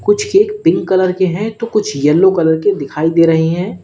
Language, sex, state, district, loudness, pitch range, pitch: Hindi, male, Uttar Pradesh, Lalitpur, -13 LUFS, 165-225 Hz, 185 Hz